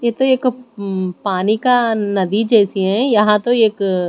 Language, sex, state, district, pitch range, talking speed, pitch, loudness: Hindi, female, Maharashtra, Gondia, 195-240 Hz, 175 wpm, 215 Hz, -16 LUFS